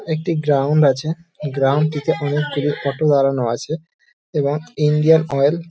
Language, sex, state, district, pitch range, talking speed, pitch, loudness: Bengali, male, West Bengal, Dakshin Dinajpur, 140-160 Hz, 135 wpm, 150 Hz, -18 LUFS